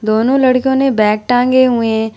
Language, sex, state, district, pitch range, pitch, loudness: Hindi, female, Bihar, Vaishali, 220-260 Hz, 245 Hz, -12 LUFS